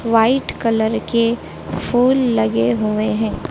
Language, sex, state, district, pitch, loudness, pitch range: Hindi, female, Madhya Pradesh, Dhar, 225 Hz, -18 LUFS, 215-240 Hz